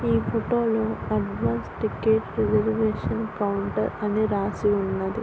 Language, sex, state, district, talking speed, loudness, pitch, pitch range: Telugu, female, Andhra Pradesh, Guntur, 115 wpm, -25 LUFS, 210 Hz, 190-220 Hz